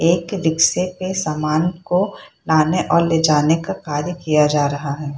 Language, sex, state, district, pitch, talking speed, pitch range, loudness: Hindi, female, Bihar, Purnia, 160 Hz, 175 wpm, 150-180 Hz, -18 LUFS